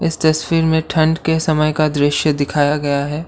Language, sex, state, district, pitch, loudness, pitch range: Hindi, male, Assam, Kamrup Metropolitan, 155 Hz, -16 LUFS, 145-160 Hz